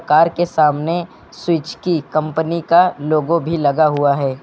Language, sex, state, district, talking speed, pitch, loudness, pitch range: Hindi, male, Uttar Pradesh, Lucknow, 150 wpm, 160 Hz, -17 LUFS, 150-170 Hz